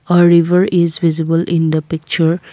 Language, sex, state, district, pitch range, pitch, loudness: English, female, Assam, Kamrup Metropolitan, 160-175 Hz, 165 Hz, -14 LUFS